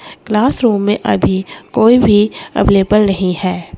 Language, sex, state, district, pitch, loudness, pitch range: Hindi, female, Chandigarh, Chandigarh, 210 Hz, -13 LUFS, 190-220 Hz